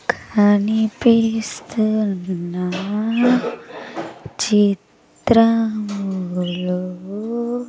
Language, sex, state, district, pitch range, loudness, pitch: Telugu, female, Andhra Pradesh, Sri Satya Sai, 185-225 Hz, -19 LUFS, 210 Hz